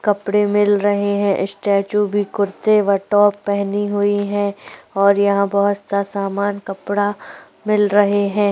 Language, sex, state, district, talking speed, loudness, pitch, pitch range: Hindi, female, Chhattisgarh, Korba, 150 wpm, -17 LUFS, 205 Hz, 200-205 Hz